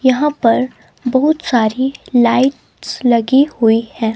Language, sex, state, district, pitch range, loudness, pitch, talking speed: Hindi, female, Himachal Pradesh, Shimla, 230-270 Hz, -14 LUFS, 255 Hz, 115 wpm